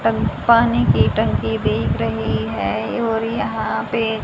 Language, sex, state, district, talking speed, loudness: Hindi, female, Haryana, Rohtak, 140 wpm, -19 LUFS